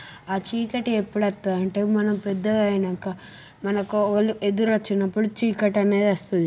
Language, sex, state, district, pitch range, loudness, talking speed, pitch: Telugu, female, Telangana, Nalgonda, 195-215 Hz, -23 LUFS, 165 wpm, 205 Hz